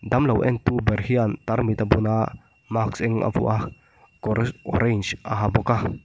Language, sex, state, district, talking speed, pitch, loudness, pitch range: Mizo, male, Mizoram, Aizawl, 200 wpm, 110 Hz, -23 LUFS, 110-115 Hz